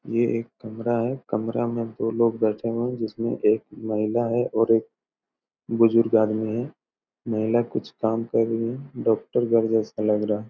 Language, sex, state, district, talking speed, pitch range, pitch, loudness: Hindi, male, Chhattisgarh, Raigarh, 190 wpm, 110-115 Hz, 115 Hz, -24 LUFS